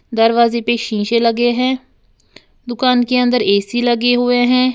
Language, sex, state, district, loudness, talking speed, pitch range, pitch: Hindi, female, Uttar Pradesh, Lalitpur, -15 LUFS, 150 wpm, 235-245 Hz, 240 Hz